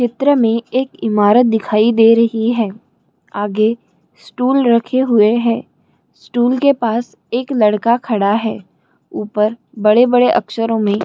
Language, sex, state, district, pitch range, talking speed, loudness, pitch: Hindi, female, Chhattisgarh, Bilaspur, 215-245 Hz, 135 wpm, -15 LUFS, 230 Hz